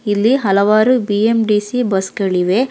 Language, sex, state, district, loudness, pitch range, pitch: Kannada, female, Karnataka, Bangalore, -15 LUFS, 200-235 Hz, 210 Hz